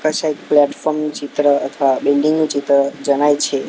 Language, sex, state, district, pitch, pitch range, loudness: Gujarati, male, Gujarat, Gandhinagar, 145 Hz, 140-150 Hz, -16 LUFS